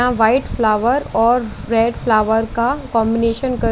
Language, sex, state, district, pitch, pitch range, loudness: Hindi, female, Chandigarh, Chandigarh, 230 Hz, 225-245 Hz, -17 LUFS